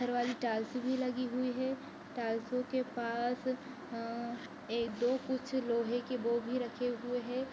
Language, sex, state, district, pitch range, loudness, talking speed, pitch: Hindi, female, Maharashtra, Aurangabad, 235-255 Hz, -36 LUFS, 160 wpm, 245 Hz